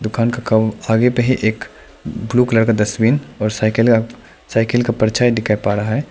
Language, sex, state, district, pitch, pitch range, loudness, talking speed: Hindi, male, Arunachal Pradesh, Lower Dibang Valley, 115 Hz, 110-120 Hz, -16 LUFS, 205 wpm